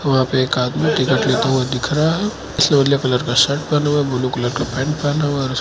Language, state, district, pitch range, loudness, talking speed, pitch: Hindi, Arunachal Pradesh, Lower Dibang Valley, 130-145 Hz, -17 LUFS, 180 wpm, 140 Hz